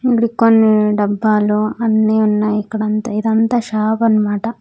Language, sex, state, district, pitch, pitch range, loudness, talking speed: Telugu, female, Andhra Pradesh, Sri Satya Sai, 215 Hz, 210-225 Hz, -15 LUFS, 130 wpm